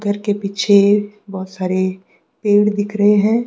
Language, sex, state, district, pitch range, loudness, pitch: Hindi, female, Himachal Pradesh, Shimla, 190-210 Hz, -16 LUFS, 205 Hz